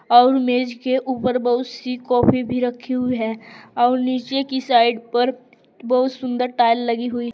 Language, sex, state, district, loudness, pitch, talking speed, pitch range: Hindi, female, Uttar Pradesh, Saharanpur, -20 LUFS, 250 Hz, 170 wpm, 240-255 Hz